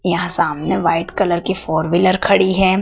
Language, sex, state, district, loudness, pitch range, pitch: Hindi, female, Madhya Pradesh, Dhar, -16 LUFS, 170-190 Hz, 185 Hz